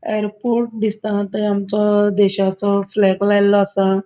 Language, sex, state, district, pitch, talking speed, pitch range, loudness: Konkani, male, Goa, North and South Goa, 205 Hz, 120 wpm, 200-210 Hz, -17 LUFS